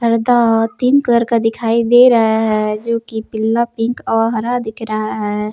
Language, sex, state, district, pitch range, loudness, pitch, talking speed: Hindi, female, Jharkhand, Palamu, 220-235 Hz, -15 LUFS, 225 Hz, 175 wpm